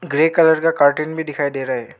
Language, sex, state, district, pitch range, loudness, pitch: Hindi, male, Arunachal Pradesh, Lower Dibang Valley, 145-165 Hz, -17 LUFS, 155 Hz